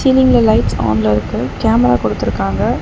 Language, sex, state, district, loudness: Tamil, female, Tamil Nadu, Chennai, -14 LUFS